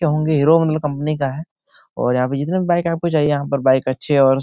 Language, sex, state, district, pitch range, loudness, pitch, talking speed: Hindi, male, Bihar, Supaul, 135-160 Hz, -18 LUFS, 150 Hz, 255 wpm